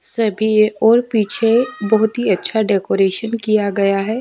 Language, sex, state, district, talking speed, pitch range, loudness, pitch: Hindi, female, Bihar, Kaimur, 140 wpm, 205-230 Hz, -16 LUFS, 220 Hz